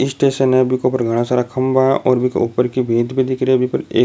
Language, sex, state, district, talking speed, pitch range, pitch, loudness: Rajasthani, male, Rajasthan, Nagaur, 310 wpm, 125-130 Hz, 130 Hz, -16 LUFS